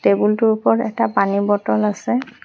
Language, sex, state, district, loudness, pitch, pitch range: Assamese, female, Assam, Hailakandi, -18 LUFS, 210 Hz, 205-230 Hz